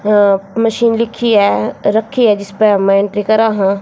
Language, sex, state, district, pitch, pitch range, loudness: Hindi, female, Haryana, Jhajjar, 210 Hz, 200-225 Hz, -13 LUFS